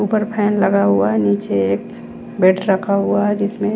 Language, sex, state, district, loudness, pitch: Hindi, female, Chandigarh, Chandigarh, -17 LUFS, 200 Hz